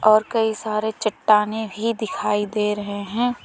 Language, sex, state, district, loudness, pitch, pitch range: Hindi, female, Uttar Pradesh, Lalitpur, -22 LUFS, 215 Hz, 210-220 Hz